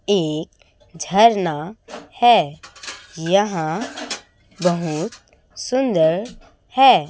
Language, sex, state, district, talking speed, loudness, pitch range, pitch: Hindi, female, Chhattisgarh, Raipur, 60 wpm, -19 LUFS, 165-240 Hz, 200 Hz